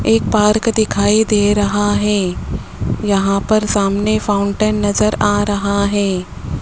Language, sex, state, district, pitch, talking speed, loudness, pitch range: Hindi, male, Rajasthan, Jaipur, 205 Hz, 125 wpm, -15 LUFS, 200-210 Hz